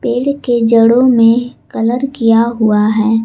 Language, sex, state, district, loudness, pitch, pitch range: Hindi, female, Jharkhand, Garhwa, -12 LUFS, 230 Hz, 225-245 Hz